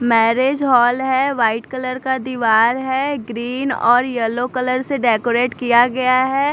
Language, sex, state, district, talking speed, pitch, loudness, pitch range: Hindi, female, Bihar, Katihar, 155 wpm, 250 Hz, -17 LUFS, 235-260 Hz